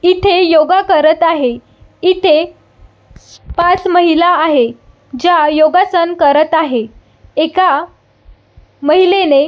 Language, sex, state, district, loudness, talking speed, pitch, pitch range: Marathi, female, Maharashtra, Solapur, -11 LUFS, 90 wpm, 330 Hz, 300-360 Hz